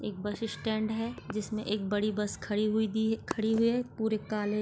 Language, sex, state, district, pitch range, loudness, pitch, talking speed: Hindi, female, Maharashtra, Solapur, 210-220 Hz, -31 LUFS, 215 Hz, 220 wpm